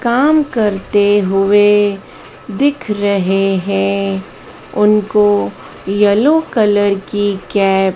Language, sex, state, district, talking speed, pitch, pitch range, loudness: Hindi, female, Madhya Pradesh, Dhar, 90 wpm, 205 Hz, 195-210 Hz, -14 LUFS